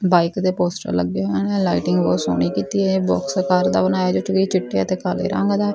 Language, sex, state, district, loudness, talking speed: Punjabi, female, Punjab, Fazilka, -19 LUFS, 210 wpm